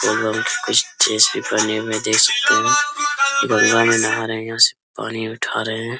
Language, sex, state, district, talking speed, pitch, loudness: Hindi, male, Jharkhand, Sahebganj, 170 wpm, 115 Hz, -16 LUFS